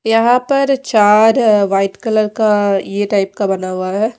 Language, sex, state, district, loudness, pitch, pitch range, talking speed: Hindi, female, Odisha, Malkangiri, -14 LUFS, 210 Hz, 200-225 Hz, 185 wpm